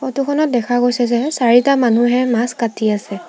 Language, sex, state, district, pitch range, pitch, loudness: Assamese, female, Assam, Sonitpur, 235-260 Hz, 245 Hz, -15 LUFS